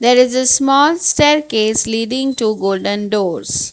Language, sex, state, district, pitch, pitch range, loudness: English, female, Gujarat, Valsad, 240 Hz, 215-275 Hz, -14 LUFS